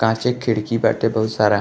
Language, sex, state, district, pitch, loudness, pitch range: Bhojpuri, male, Uttar Pradesh, Gorakhpur, 110 Hz, -19 LUFS, 110-115 Hz